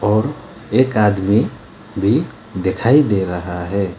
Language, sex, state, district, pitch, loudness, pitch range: Hindi, male, West Bengal, Alipurduar, 105 Hz, -17 LUFS, 95-110 Hz